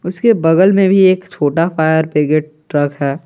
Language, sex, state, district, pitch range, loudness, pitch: Hindi, male, Jharkhand, Garhwa, 150-185 Hz, -13 LUFS, 160 Hz